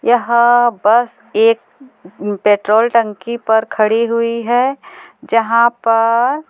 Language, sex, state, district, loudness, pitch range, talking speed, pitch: Hindi, female, Chhattisgarh, Korba, -14 LUFS, 225-240 Hz, 100 wpm, 230 Hz